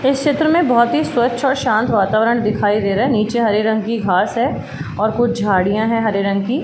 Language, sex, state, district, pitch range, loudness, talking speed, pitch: Hindi, female, Uttar Pradesh, Jalaun, 210-245 Hz, -16 LUFS, 235 wpm, 225 Hz